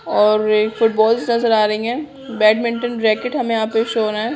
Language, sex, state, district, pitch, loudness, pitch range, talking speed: Hindi, female, Bihar, Bhagalpur, 225 Hz, -17 LUFS, 215-235 Hz, 190 wpm